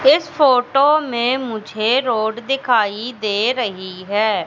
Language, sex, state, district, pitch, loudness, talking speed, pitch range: Hindi, female, Madhya Pradesh, Katni, 240 Hz, -17 LUFS, 120 wpm, 215-265 Hz